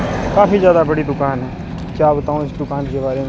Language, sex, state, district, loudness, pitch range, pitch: Hindi, male, Rajasthan, Bikaner, -16 LUFS, 140-155 Hz, 145 Hz